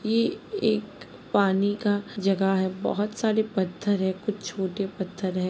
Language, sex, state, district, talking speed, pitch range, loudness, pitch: Hindi, female, Bihar, Sitamarhi, 150 wpm, 190-210 Hz, -26 LUFS, 200 Hz